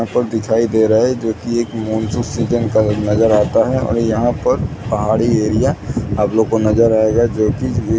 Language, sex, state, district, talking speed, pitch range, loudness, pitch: Hindi, male, Chhattisgarh, Bilaspur, 180 wpm, 110-120 Hz, -16 LUFS, 110 Hz